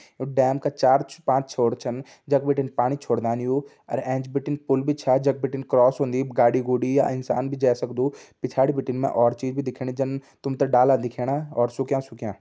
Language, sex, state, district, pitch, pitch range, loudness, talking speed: Hindi, female, Uttarakhand, Tehri Garhwal, 130 Hz, 125-140 Hz, -24 LUFS, 205 wpm